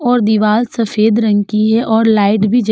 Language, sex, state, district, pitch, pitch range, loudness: Hindi, female, Uttar Pradesh, Jalaun, 220 Hz, 215-230 Hz, -13 LUFS